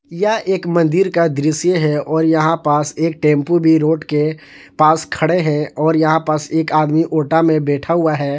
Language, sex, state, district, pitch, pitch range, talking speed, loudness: Hindi, male, Jharkhand, Palamu, 155 Hz, 150-165 Hz, 195 wpm, -15 LUFS